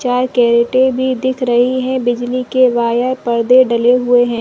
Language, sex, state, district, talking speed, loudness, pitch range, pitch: Hindi, female, Chhattisgarh, Rajnandgaon, 175 wpm, -13 LUFS, 240-255 Hz, 250 Hz